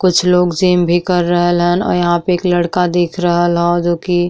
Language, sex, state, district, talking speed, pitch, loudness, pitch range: Bhojpuri, female, Uttar Pradesh, Deoria, 235 wpm, 175 Hz, -14 LUFS, 175-180 Hz